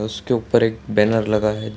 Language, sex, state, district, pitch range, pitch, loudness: Hindi, male, Bihar, Samastipur, 105-115 Hz, 110 Hz, -19 LUFS